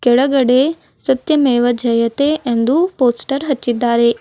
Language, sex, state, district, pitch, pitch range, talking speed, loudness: Kannada, female, Karnataka, Bidar, 255 Hz, 240-280 Hz, 85 wpm, -15 LUFS